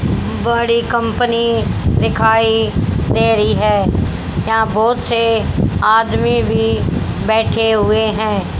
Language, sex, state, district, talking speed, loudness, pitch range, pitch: Hindi, female, Haryana, Charkhi Dadri, 100 wpm, -15 LUFS, 195-230 Hz, 220 Hz